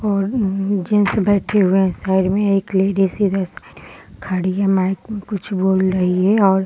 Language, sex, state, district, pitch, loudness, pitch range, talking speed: Hindi, female, Bihar, Gaya, 195 Hz, -18 LUFS, 190-200 Hz, 200 wpm